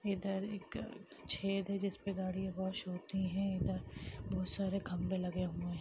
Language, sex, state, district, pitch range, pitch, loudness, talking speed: Hindi, female, Chhattisgarh, Sarguja, 185-195 Hz, 190 Hz, -40 LUFS, 165 wpm